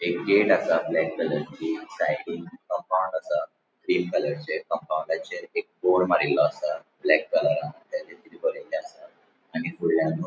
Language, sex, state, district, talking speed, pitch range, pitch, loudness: Konkani, male, Goa, North and South Goa, 150 wpm, 315-475 Hz, 345 Hz, -26 LUFS